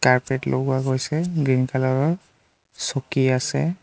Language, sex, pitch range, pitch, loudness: Assamese, male, 130-150 Hz, 135 Hz, -22 LUFS